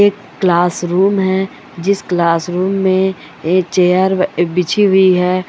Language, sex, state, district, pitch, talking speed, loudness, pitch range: Hindi, female, Goa, North and South Goa, 185 Hz, 120 wpm, -14 LUFS, 175-190 Hz